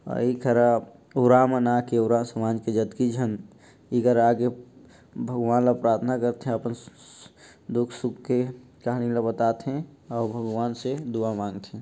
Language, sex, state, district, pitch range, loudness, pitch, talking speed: Chhattisgarhi, male, Chhattisgarh, Jashpur, 115-125 Hz, -25 LUFS, 120 Hz, 165 wpm